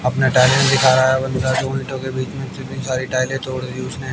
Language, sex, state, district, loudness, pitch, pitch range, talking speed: Hindi, male, Haryana, Jhajjar, -18 LUFS, 130 Hz, 130-135 Hz, 245 wpm